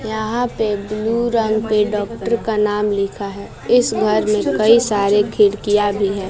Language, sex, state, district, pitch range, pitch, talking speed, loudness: Hindi, female, Bihar, West Champaran, 205-225 Hz, 210 Hz, 170 wpm, -17 LUFS